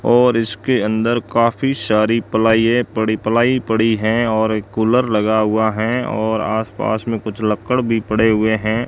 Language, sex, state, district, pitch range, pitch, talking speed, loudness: Hindi, male, Rajasthan, Bikaner, 110-115 Hz, 110 Hz, 170 wpm, -17 LUFS